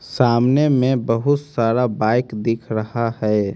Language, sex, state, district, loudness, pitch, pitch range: Hindi, male, Haryana, Rohtak, -19 LUFS, 120 Hz, 110-125 Hz